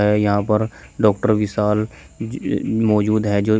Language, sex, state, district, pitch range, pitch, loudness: Hindi, male, Uttar Pradesh, Shamli, 100-110 Hz, 105 Hz, -19 LUFS